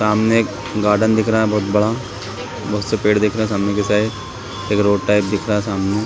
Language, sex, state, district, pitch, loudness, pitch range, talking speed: Hindi, male, Chhattisgarh, Raigarh, 105 Hz, -18 LUFS, 105-110 Hz, 210 wpm